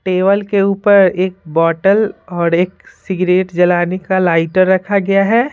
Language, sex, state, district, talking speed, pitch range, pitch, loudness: Hindi, female, Bihar, Patna, 150 wpm, 180-195 Hz, 185 Hz, -14 LUFS